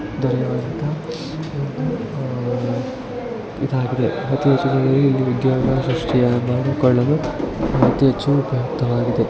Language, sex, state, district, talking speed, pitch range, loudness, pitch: Kannada, male, Karnataka, Chamarajanagar, 30 wpm, 125-145 Hz, -20 LUFS, 135 Hz